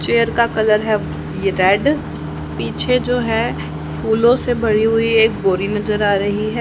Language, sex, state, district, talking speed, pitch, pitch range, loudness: Hindi, female, Haryana, Charkhi Dadri, 170 wpm, 215 Hz, 195-230 Hz, -17 LUFS